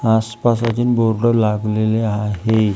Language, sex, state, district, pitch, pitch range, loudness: Marathi, female, Maharashtra, Gondia, 110 Hz, 105-115 Hz, -17 LUFS